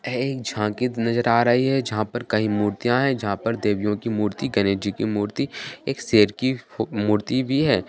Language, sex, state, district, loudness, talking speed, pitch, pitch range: Hindi, male, Bihar, Bhagalpur, -22 LUFS, 205 wpm, 115 Hz, 105-125 Hz